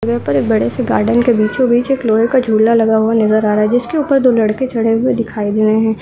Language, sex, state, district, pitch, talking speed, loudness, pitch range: Hindi, female, Bihar, Saharsa, 225 Hz, 280 wpm, -13 LUFS, 220-245 Hz